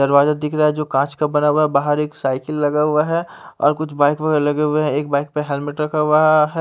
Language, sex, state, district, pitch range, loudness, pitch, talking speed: Hindi, male, Haryana, Rohtak, 145-150 Hz, -18 LUFS, 150 Hz, 270 wpm